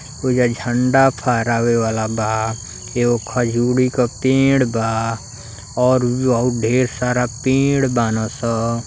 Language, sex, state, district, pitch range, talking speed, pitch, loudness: Bhojpuri, male, Uttar Pradesh, Deoria, 115-125 Hz, 110 wpm, 120 Hz, -18 LUFS